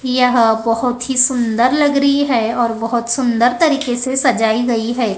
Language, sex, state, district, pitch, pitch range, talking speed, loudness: Hindi, female, Maharashtra, Gondia, 245 Hz, 230-260 Hz, 175 wpm, -15 LUFS